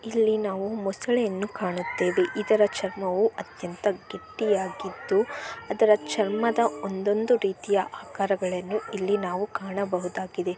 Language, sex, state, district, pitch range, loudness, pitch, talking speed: Kannada, female, Karnataka, Bellary, 190-220 Hz, -26 LUFS, 205 Hz, 70 wpm